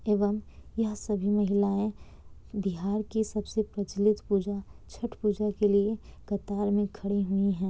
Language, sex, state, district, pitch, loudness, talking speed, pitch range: Hindi, female, Bihar, Kishanganj, 205 Hz, -29 LUFS, 140 wpm, 200-210 Hz